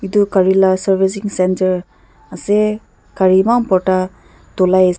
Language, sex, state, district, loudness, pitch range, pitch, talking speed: Nagamese, female, Nagaland, Dimapur, -15 LUFS, 185-205 Hz, 190 Hz, 120 wpm